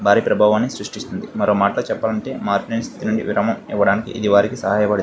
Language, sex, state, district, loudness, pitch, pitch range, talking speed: Telugu, male, Andhra Pradesh, Visakhapatnam, -19 LUFS, 105 Hz, 100-110 Hz, 165 wpm